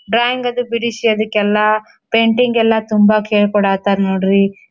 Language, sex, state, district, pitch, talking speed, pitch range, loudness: Kannada, female, Karnataka, Dharwad, 215 Hz, 115 wpm, 205-230 Hz, -15 LUFS